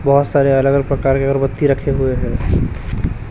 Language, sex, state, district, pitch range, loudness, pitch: Hindi, male, Chhattisgarh, Raipur, 115-140 Hz, -16 LUFS, 135 Hz